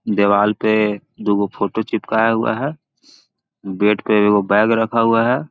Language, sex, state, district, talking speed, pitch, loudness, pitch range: Magahi, male, Bihar, Jahanabad, 175 wpm, 110 Hz, -17 LUFS, 105-115 Hz